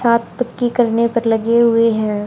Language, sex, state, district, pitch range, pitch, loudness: Hindi, female, Haryana, Charkhi Dadri, 225-235 Hz, 235 Hz, -16 LUFS